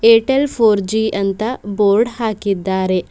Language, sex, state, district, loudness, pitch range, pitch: Kannada, female, Karnataka, Bidar, -16 LUFS, 200-230 Hz, 215 Hz